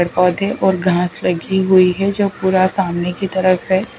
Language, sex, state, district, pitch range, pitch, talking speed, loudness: Hindi, female, Himachal Pradesh, Shimla, 180-190 Hz, 185 Hz, 195 wpm, -16 LUFS